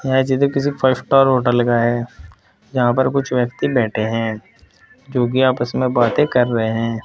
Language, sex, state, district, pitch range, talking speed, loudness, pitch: Hindi, male, Uttar Pradesh, Saharanpur, 115-130 Hz, 180 wpm, -17 LUFS, 125 Hz